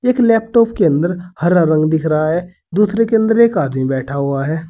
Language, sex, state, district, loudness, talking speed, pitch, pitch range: Hindi, male, Uttar Pradesh, Saharanpur, -15 LUFS, 215 wpm, 175 Hz, 155-225 Hz